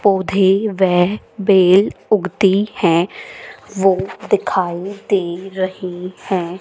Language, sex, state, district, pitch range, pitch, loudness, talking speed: Hindi, female, Haryana, Jhajjar, 185-200 Hz, 190 Hz, -17 LUFS, 90 wpm